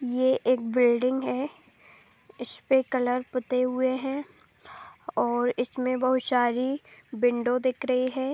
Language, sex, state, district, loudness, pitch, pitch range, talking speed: Hindi, female, Bihar, Saharsa, -26 LUFS, 255 Hz, 245-260 Hz, 130 wpm